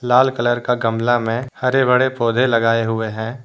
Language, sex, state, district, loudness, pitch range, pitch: Hindi, male, Jharkhand, Deoghar, -17 LUFS, 115-125 Hz, 120 Hz